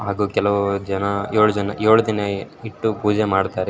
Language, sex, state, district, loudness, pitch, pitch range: Kannada, male, Karnataka, Shimoga, -20 LUFS, 100 Hz, 100-105 Hz